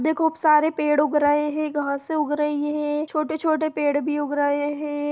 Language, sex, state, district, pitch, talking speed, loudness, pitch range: Hindi, female, Bihar, Sitamarhi, 295 Hz, 150 wpm, -22 LUFS, 290-305 Hz